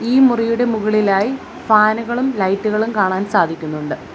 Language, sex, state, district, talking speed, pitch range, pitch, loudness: Malayalam, female, Kerala, Kollam, 100 wpm, 195-240 Hz, 215 Hz, -16 LUFS